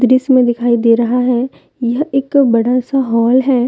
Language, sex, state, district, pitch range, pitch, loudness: Hindi, female, Jharkhand, Deoghar, 235-265 Hz, 250 Hz, -13 LUFS